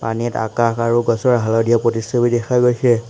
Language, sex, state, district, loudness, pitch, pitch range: Assamese, male, Assam, Hailakandi, -17 LUFS, 120 Hz, 115-120 Hz